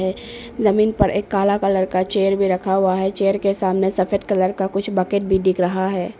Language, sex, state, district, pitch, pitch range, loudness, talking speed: Hindi, female, Arunachal Pradesh, Papum Pare, 195 Hz, 190-200 Hz, -19 LUFS, 220 wpm